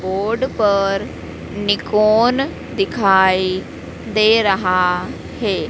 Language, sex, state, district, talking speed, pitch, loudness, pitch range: Hindi, female, Madhya Pradesh, Dhar, 75 wpm, 205 Hz, -17 LUFS, 190-220 Hz